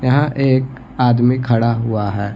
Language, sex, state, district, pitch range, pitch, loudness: Hindi, male, Bihar, Gaya, 115-130 Hz, 125 Hz, -16 LUFS